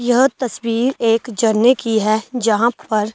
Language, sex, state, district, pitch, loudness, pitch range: Hindi, female, Delhi, New Delhi, 230 Hz, -17 LUFS, 220-245 Hz